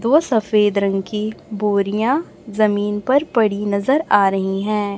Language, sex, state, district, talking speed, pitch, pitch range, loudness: Hindi, male, Chhattisgarh, Raipur, 145 wpm, 210 Hz, 200-225 Hz, -18 LUFS